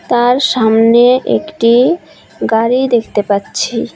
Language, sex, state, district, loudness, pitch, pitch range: Bengali, female, West Bengal, Cooch Behar, -12 LUFS, 240 Hz, 225-255 Hz